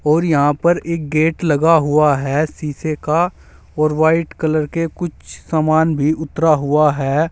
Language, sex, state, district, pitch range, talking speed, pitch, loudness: Hindi, male, Uttar Pradesh, Saharanpur, 150-165 Hz, 165 wpm, 155 Hz, -16 LUFS